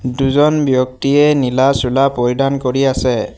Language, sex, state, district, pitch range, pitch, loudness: Assamese, male, Assam, Hailakandi, 130-140 Hz, 135 Hz, -14 LUFS